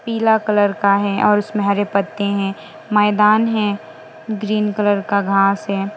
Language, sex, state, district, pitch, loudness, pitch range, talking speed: Hindi, female, West Bengal, Alipurduar, 205 Hz, -17 LUFS, 200-210 Hz, 160 wpm